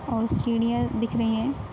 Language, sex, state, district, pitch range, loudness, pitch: Hindi, female, Bihar, Araria, 230-235 Hz, -25 LUFS, 230 Hz